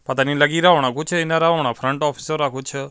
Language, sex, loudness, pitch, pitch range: Punjabi, male, -19 LUFS, 145 Hz, 135-165 Hz